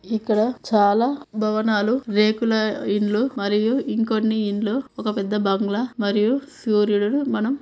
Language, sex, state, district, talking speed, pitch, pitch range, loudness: Telugu, female, Telangana, Karimnagar, 110 wpm, 215 Hz, 210-235 Hz, -21 LUFS